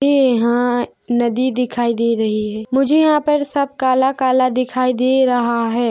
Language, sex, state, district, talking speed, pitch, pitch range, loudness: Hindi, female, Chhattisgarh, Rajnandgaon, 170 wpm, 255 Hz, 240-265 Hz, -16 LUFS